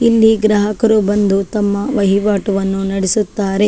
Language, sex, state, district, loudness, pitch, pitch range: Kannada, female, Karnataka, Dakshina Kannada, -14 LUFS, 205 Hz, 195-215 Hz